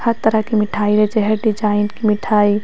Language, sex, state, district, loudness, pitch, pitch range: Maithili, female, Bihar, Madhepura, -16 LUFS, 210 Hz, 210-220 Hz